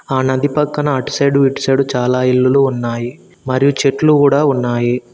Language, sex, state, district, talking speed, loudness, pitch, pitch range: Telugu, male, Telangana, Mahabubabad, 165 wpm, -14 LUFS, 135 Hz, 125-140 Hz